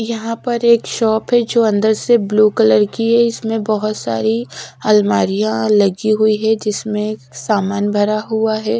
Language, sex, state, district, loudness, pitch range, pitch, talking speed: Hindi, female, Odisha, Sambalpur, -15 LUFS, 205-225 Hz, 215 Hz, 165 wpm